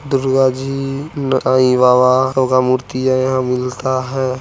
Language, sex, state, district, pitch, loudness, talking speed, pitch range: Hindi, male, Bihar, Muzaffarpur, 130 Hz, -15 LUFS, 135 wpm, 130-135 Hz